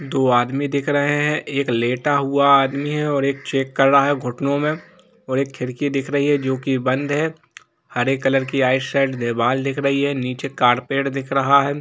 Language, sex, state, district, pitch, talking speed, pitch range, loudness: Hindi, male, Jharkhand, Jamtara, 140 Hz, 210 wpm, 130-145 Hz, -19 LUFS